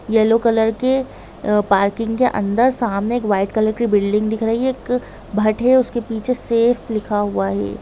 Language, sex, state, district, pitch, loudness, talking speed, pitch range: Hindi, female, Jharkhand, Jamtara, 225 Hz, -18 LUFS, 190 wpm, 210-240 Hz